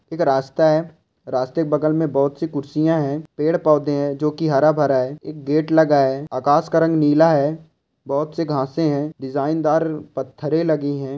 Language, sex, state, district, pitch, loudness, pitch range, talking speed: Hindi, male, Rajasthan, Churu, 150 Hz, -19 LUFS, 140-160 Hz, 195 wpm